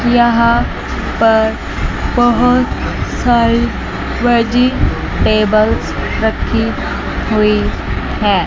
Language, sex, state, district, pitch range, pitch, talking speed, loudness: Hindi, female, Chandigarh, Chandigarh, 215-240 Hz, 235 Hz, 55 wpm, -14 LUFS